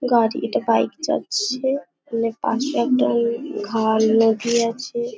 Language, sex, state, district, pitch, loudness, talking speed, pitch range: Bengali, female, West Bengal, Paschim Medinipur, 235 Hz, -21 LUFS, 125 wpm, 230-270 Hz